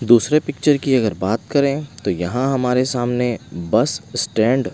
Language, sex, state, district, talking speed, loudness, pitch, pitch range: Hindi, male, Odisha, Malkangiri, 165 wpm, -19 LUFS, 125 Hz, 110-135 Hz